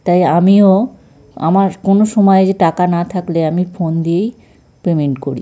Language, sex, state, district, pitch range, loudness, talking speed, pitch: Bengali, male, West Bengal, North 24 Parganas, 170-195 Hz, -13 LUFS, 155 wpm, 180 Hz